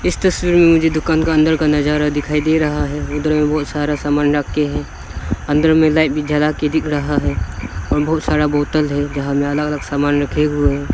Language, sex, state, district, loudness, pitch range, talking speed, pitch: Hindi, male, Arunachal Pradesh, Lower Dibang Valley, -16 LUFS, 145-155 Hz, 235 wpm, 150 Hz